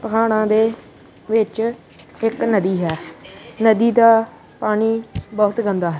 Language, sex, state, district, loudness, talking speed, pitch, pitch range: Punjabi, male, Punjab, Kapurthala, -18 LUFS, 120 wpm, 220 Hz, 205-225 Hz